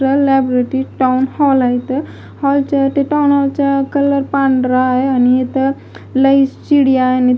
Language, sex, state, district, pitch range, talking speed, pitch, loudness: Marathi, female, Maharashtra, Mumbai Suburban, 255-280 Hz, 130 wpm, 270 Hz, -14 LUFS